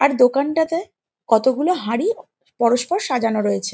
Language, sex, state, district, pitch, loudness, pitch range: Bengali, female, West Bengal, Jalpaiguri, 260 Hz, -19 LUFS, 235-330 Hz